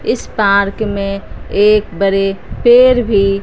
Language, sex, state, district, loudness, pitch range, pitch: Hindi, female, Punjab, Fazilka, -13 LUFS, 195-215 Hz, 200 Hz